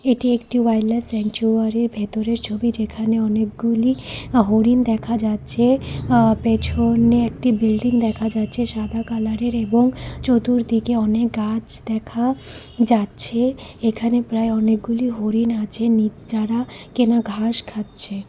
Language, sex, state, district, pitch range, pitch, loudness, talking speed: Bengali, female, Tripura, West Tripura, 220-235 Hz, 230 Hz, -19 LUFS, 110 wpm